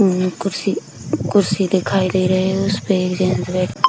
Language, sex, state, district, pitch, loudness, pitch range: Hindi, female, Bihar, Kishanganj, 190 Hz, -18 LUFS, 185-195 Hz